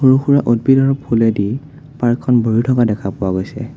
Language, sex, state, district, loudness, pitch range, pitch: Assamese, male, Assam, Sonitpur, -15 LUFS, 115-135 Hz, 120 Hz